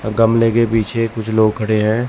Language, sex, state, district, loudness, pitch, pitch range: Hindi, male, Chandigarh, Chandigarh, -16 LUFS, 110 Hz, 110-115 Hz